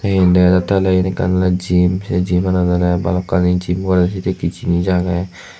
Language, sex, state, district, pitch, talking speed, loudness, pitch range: Chakma, male, Tripura, Unakoti, 90 Hz, 205 wpm, -16 LUFS, 90-95 Hz